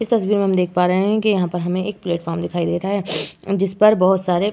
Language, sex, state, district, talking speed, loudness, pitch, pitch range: Hindi, female, Uttar Pradesh, Varanasi, 290 wpm, -19 LUFS, 185 Hz, 175-200 Hz